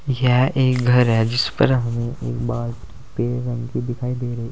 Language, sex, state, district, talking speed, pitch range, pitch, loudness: Hindi, male, Uttar Pradesh, Saharanpur, 185 wpm, 115-125 Hz, 120 Hz, -20 LUFS